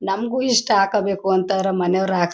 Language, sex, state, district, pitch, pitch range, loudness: Kannada, female, Karnataka, Mysore, 195 Hz, 190-210 Hz, -19 LUFS